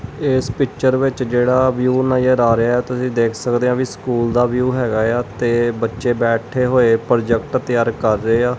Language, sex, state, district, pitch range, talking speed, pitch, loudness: Punjabi, male, Punjab, Kapurthala, 115-125 Hz, 190 wpm, 120 Hz, -17 LUFS